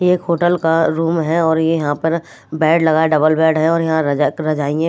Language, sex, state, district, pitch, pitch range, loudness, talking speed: Hindi, female, Maharashtra, Mumbai Suburban, 160 Hz, 155-165 Hz, -16 LUFS, 255 wpm